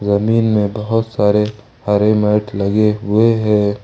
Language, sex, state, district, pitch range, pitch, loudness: Hindi, male, Jharkhand, Ranchi, 105-110 Hz, 105 Hz, -15 LUFS